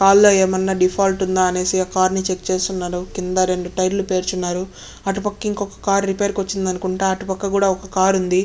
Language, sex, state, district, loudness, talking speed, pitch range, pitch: Telugu, male, Andhra Pradesh, Chittoor, -19 LUFS, 205 wpm, 185-195 Hz, 190 Hz